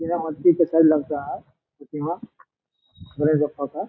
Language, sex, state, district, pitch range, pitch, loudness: Hindi, male, Bihar, Jamui, 145-165 Hz, 150 Hz, -22 LUFS